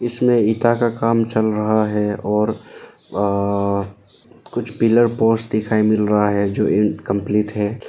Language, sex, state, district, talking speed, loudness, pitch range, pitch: Hindi, male, Arunachal Pradesh, Lower Dibang Valley, 145 wpm, -18 LUFS, 105-115 Hz, 105 Hz